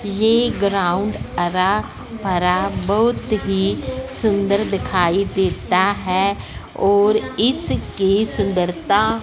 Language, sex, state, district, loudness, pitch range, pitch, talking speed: Hindi, female, Punjab, Fazilka, -18 LUFS, 185-215 Hz, 200 Hz, 85 wpm